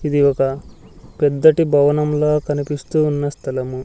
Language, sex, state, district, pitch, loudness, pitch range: Telugu, male, Andhra Pradesh, Sri Satya Sai, 145 Hz, -17 LUFS, 140-150 Hz